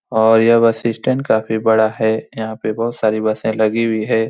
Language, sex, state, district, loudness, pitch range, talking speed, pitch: Hindi, male, Bihar, Supaul, -16 LUFS, 110-115 Hz, 210 wpm, 110 Hz